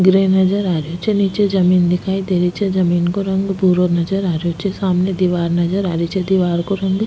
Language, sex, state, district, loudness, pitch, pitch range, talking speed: Rajasthani, female, Rajasthan, Nagaur, -17 LUFS, 185 Hz, 175-195 Hz, 245 wpm